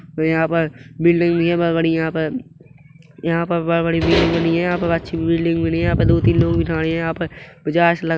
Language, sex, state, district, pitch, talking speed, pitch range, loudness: Hindi, male, Chhattisgarh, Rajnandgaon, 165 Hz, 220 wpm, 160-170 Hz, -18 LUFS